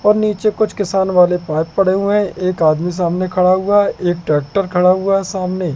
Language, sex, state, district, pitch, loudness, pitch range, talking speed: Hindi, male, Madhya Pradesh, Katni, 185 Hz, -15 LUFS, 180-200 Hz, 220 wpm